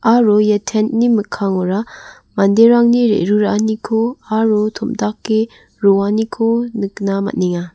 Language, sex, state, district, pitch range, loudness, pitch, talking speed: Garo, female, Meghalaya, West Garo Hills, 200-230 Hz, -15 LUFS, 215 Hz, 95 wpm